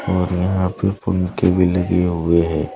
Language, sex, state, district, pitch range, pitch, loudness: Hindi, male, Uttar Pradesh, Saharanpur, 90-95 Hz, 90 Hz, -18 LUFS